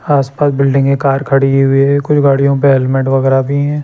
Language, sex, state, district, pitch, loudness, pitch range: Hindi, male, Chandigarh, Chandigarh, 140 Hz, -11 LUFS, 135-140 Hz